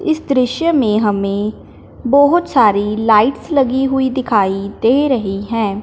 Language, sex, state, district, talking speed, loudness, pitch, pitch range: Hindi, male, Punjab, Fazilka, 135 wpm, -15 LUFS, 245 Hz, 210-275 Hz